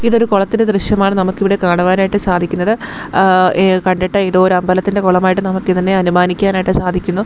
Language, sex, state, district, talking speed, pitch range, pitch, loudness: Malayalam, female, Kerala, Thiruvananthapuram, 140 wpm, 185-200 Hz, 190 Hz, -13 LUFS